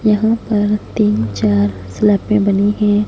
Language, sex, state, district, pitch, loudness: Hindi, female, Punjab, Fazilka, 210 Hz, -15 LUFS